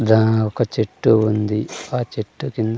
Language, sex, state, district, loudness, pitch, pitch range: Telugu, male, Andhra Pradesh, Sri Satya Sai, -19 LUFS, 110 Hz, 110-120 Hz